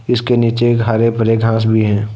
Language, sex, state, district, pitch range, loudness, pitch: Hindi, male, Jharkhand, Deoghar, 110-120 Hz, -14 LUFS, 115 Hz